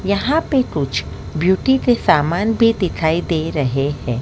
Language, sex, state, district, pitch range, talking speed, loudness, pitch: Hindi, female, Maharashtra, Mumbai Suburban, 150-230 Hz, 155 wpm, -17 LUFS, 185 Hz